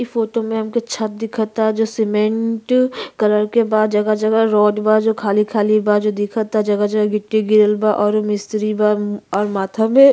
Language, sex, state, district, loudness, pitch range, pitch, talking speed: Bhojpuri, female, Uttar Pradesh, Ghazipur, -17 LUFS, 210-220 Hz, 215 Hz, 180 wpm